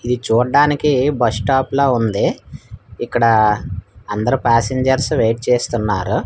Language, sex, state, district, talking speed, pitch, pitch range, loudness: Telugu, male, Andhra Pradesh, Manyam, 105 wpm, 120 Hz, 110-130 Hz, -16 LUFS